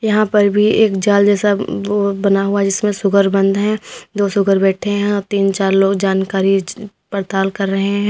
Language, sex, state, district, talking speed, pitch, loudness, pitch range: Hindi, female, Uttar Pradesh, Lalitpur, 190 wpm, 200 Hz, -15 LUFS, 195-205 Hz